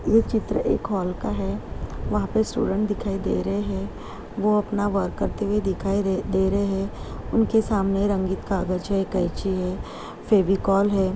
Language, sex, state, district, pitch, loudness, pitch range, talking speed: Hindi, female, Uttar Pradesh, Jyotiba Phule Nagar, 195 Hz, -24 LUFS, 190-205 Hz, 170 wpm